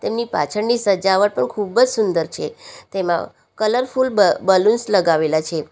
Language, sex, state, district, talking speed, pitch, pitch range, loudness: Gujarati, female, Gujarat, Valsad, 145 wpm, 205 Hz, 170-235 Hz, -18 LUFS